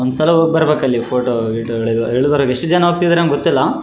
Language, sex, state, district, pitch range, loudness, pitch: Kannada, male, Karnataka, Raichur, 120-165 Hz, -15 LUFS, 140 Hz